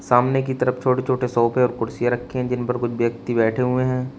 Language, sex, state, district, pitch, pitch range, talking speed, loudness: Hindi, male, Uttar Pradesh, Shamli, 125 Hz, 120-130 Hz, 245 wpm, -21 LUFS